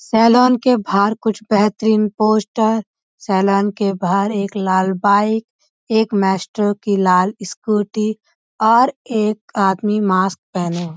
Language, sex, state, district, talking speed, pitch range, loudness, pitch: Hindi, female, Uttarakhand, Uttarkashi, 125 wpm, 195-220 Hz, -17 LUFS, 210 Hz